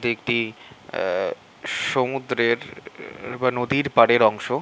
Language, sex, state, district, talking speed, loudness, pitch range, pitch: Bengali, male, West Bengal, Malda, 80 wpm, -22 LUFS, 120-135 Hz, 125 Hz